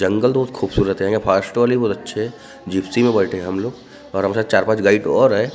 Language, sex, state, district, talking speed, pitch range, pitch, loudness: Hindi, male, Maharashtra, Gondia, 205 wpm, 95-120 Hz, 100 Hz, -18 LUFS